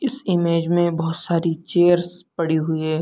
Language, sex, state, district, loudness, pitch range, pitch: Hindi, male, Bihar, Begusarai, -20 LUFS, 165-175 Hz, 170 Hz